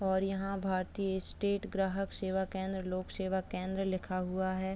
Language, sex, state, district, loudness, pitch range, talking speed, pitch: Hindi, male, Bihar, Purnia, -35 LUFS, 185-195 Hz, 165 wpm, 190 Hz